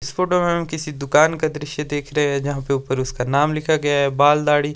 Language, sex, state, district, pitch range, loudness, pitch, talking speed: Hindi, male, Himachal Pradesh, Shimla, 140-155 Hz, -19 LUFS, 145 Hz, 265 wpm